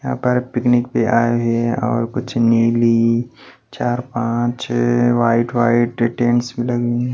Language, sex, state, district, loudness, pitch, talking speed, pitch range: Hindi, male, Maharashtra, Washim, -17 LUFS, 120 Hz, 150 wpm, 115-120 Hz